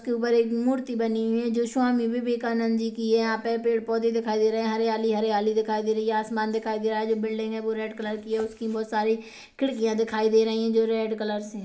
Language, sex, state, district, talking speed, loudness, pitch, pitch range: Hindi, female, Chhattisgarh, Kabirdham, 275 wpm, -26 LUFS, 225 Hz, 220-230 Hz